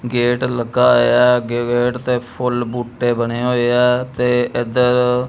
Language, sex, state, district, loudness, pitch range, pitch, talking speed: Punjabi, male, Punjab, Kapurthala, -16 LUFS, 120-125 Hz, 125 Hz, 145 wpm